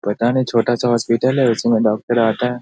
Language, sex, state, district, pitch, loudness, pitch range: Hindi, male, Bihar, Saharsa, 120 Hz, -17 LUFS, 115-125 Hz